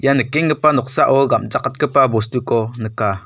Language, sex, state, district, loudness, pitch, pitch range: Garo, male, Meghalaya, South Garo Hills, -16 LUFS, 130 Hz, 110-140 Hz